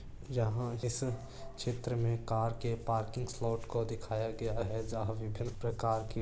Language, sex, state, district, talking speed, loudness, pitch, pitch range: Hindi, male, Rajasthan, Churu, 145 wpm, -36 LUFS, 115 Hz, 110-120 Hz